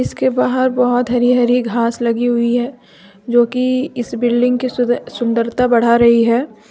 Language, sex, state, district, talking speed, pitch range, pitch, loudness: Hindi, female, Jharkhand, Deoghar, 160 wpm, 235-250 Hz, 240 Hz, -15 LUFS